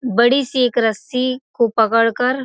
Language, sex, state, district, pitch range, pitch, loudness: Hindi, female, Bihar, Gopalganj, 230-255 Hz, 245 Hz, -17 LUFS